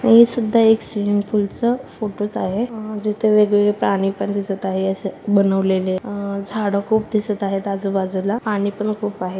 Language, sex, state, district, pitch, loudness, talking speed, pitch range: Marathi, female, Maharashtra, Solapur, 205 Hz, -19 LUFS, 170 wpm, 195-215 Hz